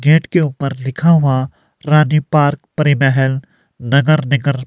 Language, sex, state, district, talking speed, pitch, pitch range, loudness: Hindi, male, Himachal Pradesh, Shimla, 140 wpm, 145 Hz, 135-150 Hz, -14 LUFS